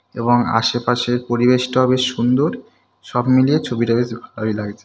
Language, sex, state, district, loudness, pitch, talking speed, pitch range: Bengali, male, West Bengal, Kolkata, -18 LUFS, 120 Hz, 150 wpm, 115-125 Hz